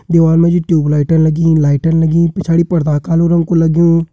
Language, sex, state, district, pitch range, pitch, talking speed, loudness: Hindi, male, Uttarakhand, Uttarkashi, 160-170 Hz, 165 Hz, 190 wpm, -12 LUFS